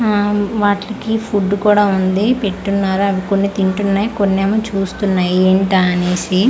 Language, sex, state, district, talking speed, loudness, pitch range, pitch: Telugu, female, Andhra Pradesh, Manyam, 150 wpm, -15 LUFS, 190-205 Hz, 200 Hz